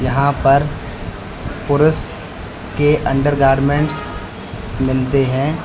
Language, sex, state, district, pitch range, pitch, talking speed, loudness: Hindi, male, Uttar Pradesh, Lalitpur, 130-145 Hz, 135 Hz, 75 wpm, -16 LUFS